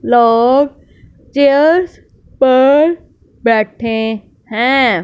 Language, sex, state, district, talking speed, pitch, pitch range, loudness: Hindi, female, Punjab, Fazilka, 60 wpm, 255 Hz, 230-280 Hz, -12 LUFS